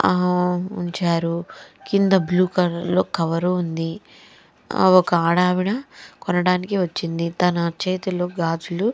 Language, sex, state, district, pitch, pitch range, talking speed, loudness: Telugu, female, Andhra Pradesh, Chittoor, 180 Hz, 170-185 Hz, 105 wpm, -21 LUFS